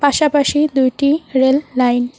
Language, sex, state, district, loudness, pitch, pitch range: Bengali, female, West Bengal, Cooch Behar, -15 LUFS, 280 Hz, 260-295 Hz